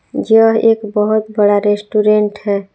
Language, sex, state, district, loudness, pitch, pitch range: Hindi, female, Jharkhand, Palamu, -13 LUFS, 210 Hz, 205-220 Hz